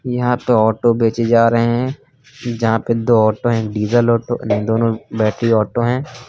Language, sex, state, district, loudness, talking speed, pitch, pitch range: Hindi, male, Uttar Pradesh, Lucknow, -16 LUFS, 170 wpm, 115 Hz, 110-120 Hz